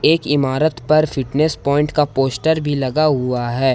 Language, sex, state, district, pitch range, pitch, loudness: Hindi, male, Jharkhand, Ranchi, 135-155 Hz, 145 Hz, -17 LUFS